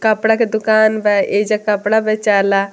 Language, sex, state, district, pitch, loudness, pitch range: Bhojpuri, female, Bihar, Muzaffarpur, 215 Hz, -15 LUFS, 205-220 Hz